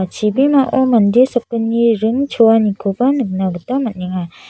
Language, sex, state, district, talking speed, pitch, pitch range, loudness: Garo, female, Meghalaya, South Garo Hills, 95 wpm, 230 Hz, 200-255 Hz, -15 LUFS